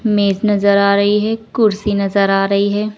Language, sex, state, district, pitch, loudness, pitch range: Hindi, female, Uttar Pradesh, Saharanpur, 205 Hz, -14 LUFS, 200-210 Hz